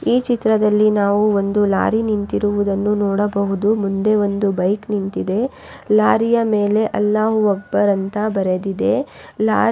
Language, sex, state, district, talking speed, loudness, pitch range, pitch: Kannada, female, Karnataka, Raichur, 70 wpm, -18 LUFS, 200-215 Hz, 205 Hz